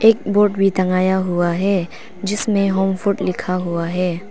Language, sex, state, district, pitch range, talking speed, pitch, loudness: Hindi, female, Arunachal Pradesh, Papum Pare, 180-200 Hz, 165 wpm, 190 Hz, -18 LUFS